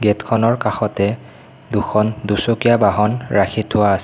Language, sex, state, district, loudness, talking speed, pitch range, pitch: Assamese, male, Assam, Kamrup Metropolitan, -17 LUFS, 135 wpm, 105-115 Hz, 105 Hz